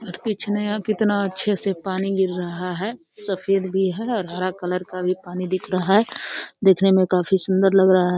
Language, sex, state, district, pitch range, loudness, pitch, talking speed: Hindi, female, Uttar Pradesh, Deoria, 185-205 Hz, -21 LUFS, 190 Hz, 205 wpm